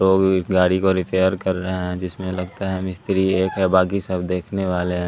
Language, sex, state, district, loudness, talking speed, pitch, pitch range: Hindi, male, Bihar, West Champaran, -20 LUFS, 225 wpm, 95 Hz, 90-95 Hz